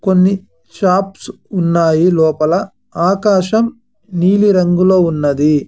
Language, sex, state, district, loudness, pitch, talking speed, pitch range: Telugu, male, Andhra Pradesh, Sri Satya Sai, -13 LUFS, 185 Hz, 75 wpm, 165-195 Hz